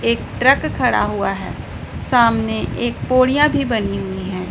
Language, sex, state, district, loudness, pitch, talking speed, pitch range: Hindi, female, Punjab, Pathankot, -17 LUFS, 225 Hz, 160 wpm, 190-250 Hz